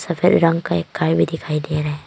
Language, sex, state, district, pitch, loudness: Hindi, female, Arunachal Pradesh, Longding, 150 Hz, -19 LUFS